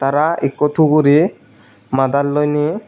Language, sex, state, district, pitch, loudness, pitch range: Chakma, male, Tripura, Unakoti, 145 Hz, -15 LUFS, 135-150 Hz